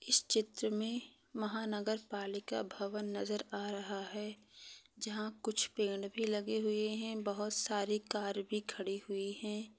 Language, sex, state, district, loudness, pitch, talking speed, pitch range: Hindi, female, Maharashtra, Pune, -38 LUFS, 210 Hz, 140 wpm, 205-220 Hz